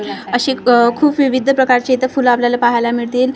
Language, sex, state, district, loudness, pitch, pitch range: Marathi, female, Maharashtra, Gondia, -14 LUFS, 250 Hz, 240-265 Hz